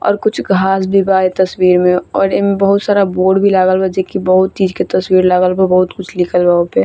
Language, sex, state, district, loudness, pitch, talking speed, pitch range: Bhojpuri, female, Bihar, Saran, -12 LUFS, 185 Hz, 265 wpm, 185-195 Hz